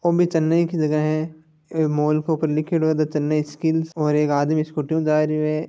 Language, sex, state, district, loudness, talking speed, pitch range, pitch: Marwari, male, Rajasthan, Nagaur, -21 LUFS, 220 wpm, 150-160 Hz, 155 Hz